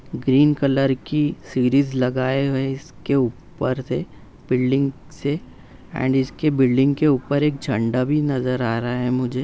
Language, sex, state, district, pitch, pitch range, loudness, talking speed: Hindi, male, Bihar, Saran, 135 Hz, 125-145 Hz, -21 LUFS, 160 wpm